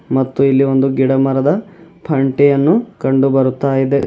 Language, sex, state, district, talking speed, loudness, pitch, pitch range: Kannada, male, Karnataka, Bidar, 135 wpm, -14 LUFS, 135 Hz, 135-145 Hz